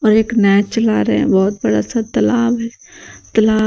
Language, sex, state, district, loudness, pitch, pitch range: Hindi, female, Uttar Pradesh, Shamli, -15 LUFS, 215 Hz, 195-230 Hz